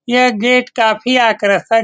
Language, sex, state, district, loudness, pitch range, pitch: Hindi, male, Bihar, Saran, -13 LUFS, 220-250 Hz, 230 Hz